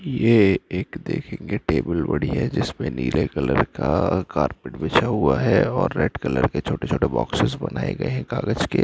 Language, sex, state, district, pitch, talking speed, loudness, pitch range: Hindi, male, Andhra Pradesh, Anantapur, 95 Hz, 155 wpm, -22 LUFS, 75-105 Hz